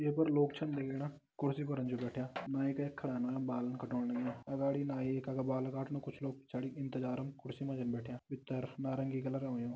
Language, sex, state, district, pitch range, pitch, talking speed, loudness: Hindi, male, Uttarakhand, Tehri Garhwal, 125-140 Hz, 135 Hz, 210 wpm, -39 LUFS